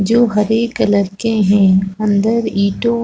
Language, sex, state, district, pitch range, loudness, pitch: Hindi, female, Chhattisgarh, Rajnandgaon, 200-230 Hz, -14 LUFS, 210 Hz